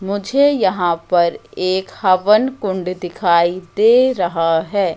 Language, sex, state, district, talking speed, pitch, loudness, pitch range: Hindi, female, Madhya Pradesh, Katni, 120 wpm, 185 Hz, -16 LUFS, 175-205 Hz